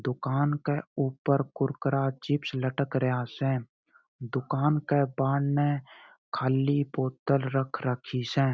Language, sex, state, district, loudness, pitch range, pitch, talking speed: Marwari, male, Rajasthan, Churu, -29 LUFS, 130-145 Hz, 135 Hz, 110 wpm